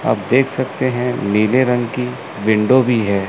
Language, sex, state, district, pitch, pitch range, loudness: Hindi, male, Chandigarh, Chandigarh, 125 Hz, 105-130 Hz, -17 LUFS